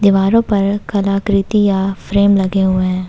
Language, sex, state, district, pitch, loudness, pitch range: Hindi, female, Jharkhand, Ranchi, 195 Hz, -14 LUFS, 195-200 Hz